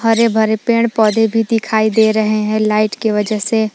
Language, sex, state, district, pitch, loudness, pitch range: Hindi, female, Jharkhand, Palamu, 220 Hz, -14 LUFS, 215-225 Hz